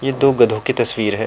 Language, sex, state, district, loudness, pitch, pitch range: Hindi, male, Uttar Pradesh, Jyotiba Phule Nagar, -16 LUFS, 120 Hz, 110-130 Hz